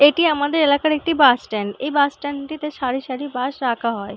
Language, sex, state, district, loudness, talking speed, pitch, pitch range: Bengali, female, West Bengal, North 24 Parganas, -19 LUFS, 245 wpm, 285 Hz, 250-300 Hz